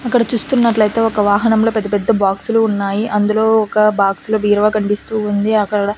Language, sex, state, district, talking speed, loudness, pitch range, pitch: Telugu, female, Andhra Pradesh, Annamaya, 160 wpm, -15 LUFS, 205-225 Hz, 215 Hz